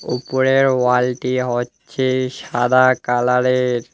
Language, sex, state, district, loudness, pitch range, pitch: Bengali, male, West Bengal, Alipurduar, -17 LUFS, 125-130 Hz, 125 Hz